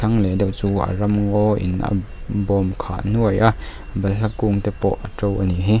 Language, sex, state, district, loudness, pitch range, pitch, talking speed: Mizo, male, Mizoram, Aizawl, -20 LUFS, 100-105 Hz, 100 Hz, 195 wpm